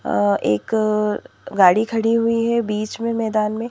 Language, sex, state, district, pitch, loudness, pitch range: Hindi, female, Madhya Pradesh, Bhopal, 215 Hz, -19 LUFS, 210-230 Hz